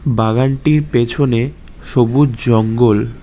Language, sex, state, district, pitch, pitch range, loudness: Bengali, male, West Bengal, Cooch Behar, 120 Hz, 115-135 Hz, -14 LUFS